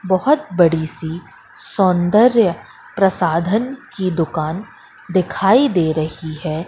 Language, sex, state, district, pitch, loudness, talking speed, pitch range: Hindi, female, Madhya Pradesh, Katni, 180 Hz, -17 LUFS, 100 wpm, 160-200 Hz